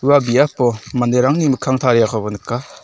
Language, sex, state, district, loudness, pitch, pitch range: Garo, male, Meghalaya, South Garo Hills, -16 LUFS, 125 Hz, 120-140 Hz